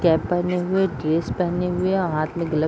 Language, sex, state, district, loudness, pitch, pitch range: Hindi, female, Bihar, Madhepura, -22 LUFS, 175 Hz, 160-180 Hz